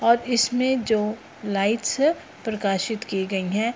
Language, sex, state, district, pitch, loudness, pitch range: Hindi, female, Bihar, Purnia, 220 Hz, -23 LUFS, 200-240 Hz